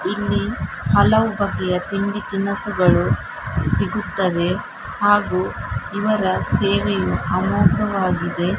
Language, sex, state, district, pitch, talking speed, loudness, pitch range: Kannada, female, Karnataka, Dakshina Kannada, 200 Hz, 75 wpm, -20 LUFS, 185-205 Hz